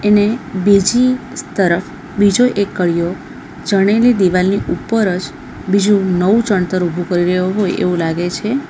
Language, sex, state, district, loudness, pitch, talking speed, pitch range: Gujarati, female, Gujarat, Valsad, -15 LUFS, 195 Hz, 140 wpm, 180-210 Hz